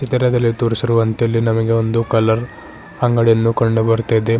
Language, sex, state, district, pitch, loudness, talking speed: Kannada, male, Karnataka, Bidar, 115 Hz, -16 LUFS, 125 wpm